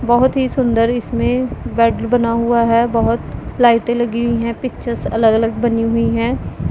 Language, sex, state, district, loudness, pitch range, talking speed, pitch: Hindi, female, Punjab, Pathankot, -16 LUFS, 230-240 Hz, 170 wpm, 235 Hz